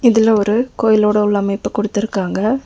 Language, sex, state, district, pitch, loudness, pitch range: Tamil, female, Tamil Nadu, Nilgiris, 210 Hz, -16 LUFS, 205-225 Hz